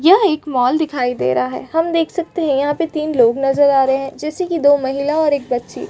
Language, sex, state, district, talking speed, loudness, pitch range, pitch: Hindi, female, Chhattisgarh, Balrampur, 275 wpm, -16 LUFS, 260-320 Hz, 285 Hz